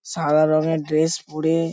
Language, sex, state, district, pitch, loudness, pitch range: Bengali, male, West Bengal, Paschim Medinipur, 160 Hz, -20 LUFS, 155-165 Hz